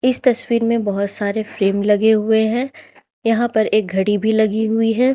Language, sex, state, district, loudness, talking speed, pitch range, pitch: Hindi, female, Jharkhand, Ranchi, -17 LUFS, 200 wpm, 210-235 Hz, 220 Hz